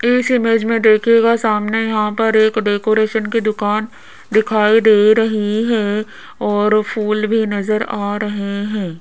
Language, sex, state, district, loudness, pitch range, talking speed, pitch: Hindi, female, Rajasthan, Jaipur, -15 LUFS, 210-225 Hz, 145 wpm, 215 Hz